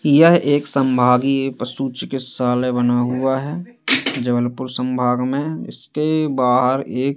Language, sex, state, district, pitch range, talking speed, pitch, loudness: Hindi, male, Madhya Pradesh, Katni, 125-145 Hz, 115 wpm, 135 Hz, -18 LUFS